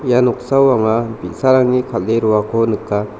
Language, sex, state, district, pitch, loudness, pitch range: Garo, male, Meghalaya, South Garo Hills, 115 Hz, -15 LUFS, 110-125 Hz